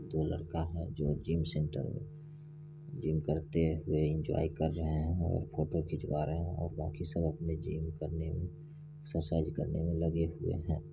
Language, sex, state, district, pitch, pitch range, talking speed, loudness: Hindi, male, Bihar, Saran, 80 Hz, 80-85 Hz, 170 wpm, -35 LUFS